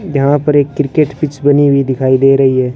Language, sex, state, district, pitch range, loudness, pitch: Hindi, male, Rajasthan, Bikaner, 135-145 Hz, -11 LUFS, 140 Hz